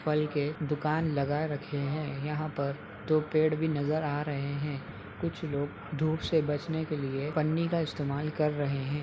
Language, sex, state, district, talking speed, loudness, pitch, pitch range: Hindi, male, Uttar Pradesh, Hamirpur, 185 wpm, -31 LUFS, 150 Hz, 145-155 Hz